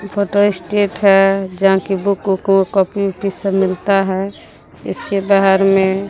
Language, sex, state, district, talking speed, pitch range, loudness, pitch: Hindi, female, Bihar, Katihar, 155 wpm, 195-200 Hz, -15 LUFS, 195 Hz